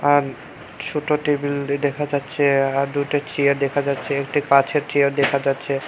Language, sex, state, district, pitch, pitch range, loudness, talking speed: Bengali, male, Tripura, Unakoti, 140 Hz, 140-145 Hz, -20 LUFS, 145 wpm